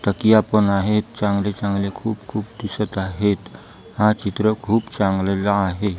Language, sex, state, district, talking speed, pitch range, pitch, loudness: Marathi, female, Maharashtra, Gondia, 140 wpm, 100-105 Hz, 105 Hz, -20 LUFS